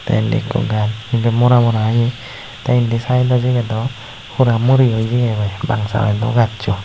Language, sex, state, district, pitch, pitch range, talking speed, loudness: Chakma, male, Tripura, Unakoti, 115 Hz, 110-125 Hz, 160 wpm, -16 LUFS